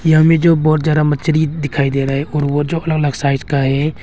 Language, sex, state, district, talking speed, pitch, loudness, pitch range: Hindi, male, Arunachal Pradesh, Longding, 270 wpm, 150 Hz, -15 LUFS, 140-155 Hz